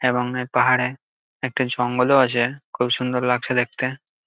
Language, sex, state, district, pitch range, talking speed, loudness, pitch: Bengali, male, West Bengal, Jalpaiguri, 125-130 Hz, 140 wpm, -21 LUFS, 125 Hz